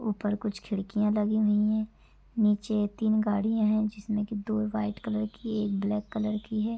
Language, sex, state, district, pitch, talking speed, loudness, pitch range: Hindi, female, Uttar Pradesh, Gorakhpur, 215 Hz, 185 wpm, -29 LUFS, 210-215 Hz